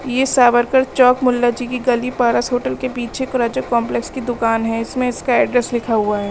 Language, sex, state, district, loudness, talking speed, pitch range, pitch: Hindi, female, Uttar Pradesh, Lalitpur, -17 LUFS, 190 wpm, 235-255 Hz, 245 Hz